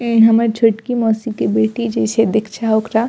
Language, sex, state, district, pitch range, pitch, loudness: Maithili, female, Bihar, Purnia, 215-230 Hz, 225 Hz, -16 LUFS